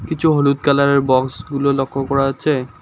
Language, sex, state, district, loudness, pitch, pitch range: Bengali, male, West Bengal, Alipurduar, -17 LUFS, 140 Hz, 130-140 Hz